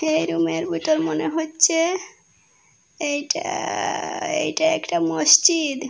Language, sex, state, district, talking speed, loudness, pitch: Bengali, female, Assam, Hailakandi, 110 wpm, -20 LUFS, 300 Hz